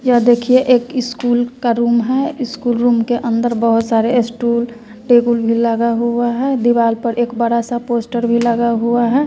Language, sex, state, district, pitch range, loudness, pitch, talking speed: Hindi, female, Bihar, West Champaran, 235-245 Hz, -15 LUFS, 235 Hz, 190 wpm